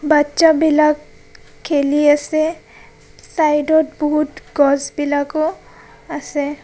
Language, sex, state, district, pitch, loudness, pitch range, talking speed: Assamese, female, Assam, Kamrup Metropolitan, 300 Hz, -16 LUFS, 290-310 Hz, 90 wpm